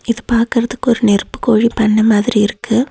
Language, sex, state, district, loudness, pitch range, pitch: Tamil, female, Tamil Nadu, Nilgiris, -14 LUFS, 220-240 Hz, 235 Hz